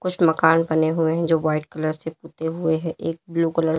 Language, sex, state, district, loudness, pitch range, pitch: Hindi, female, Uttar Pradesh, Lalitpur, -22 LUFS, 160-165 Hz, 160 Hz